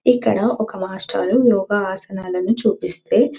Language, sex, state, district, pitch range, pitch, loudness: Telugu, female, Telangana, Nalgonda, 190-230 Hz, 205 Hz, -19 LUFS